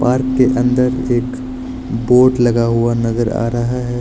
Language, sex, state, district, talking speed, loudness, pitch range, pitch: Hindi, male, Uttar Pradesh, Lucknow, 165 wpm, -15 LUFS, 120-130 Hz, 125 Hz